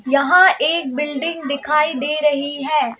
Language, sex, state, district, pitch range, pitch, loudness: Hindi, female, Madhya Pradesh, Bhopal, 285-320 Hz, 300 Hz, -17 LUFS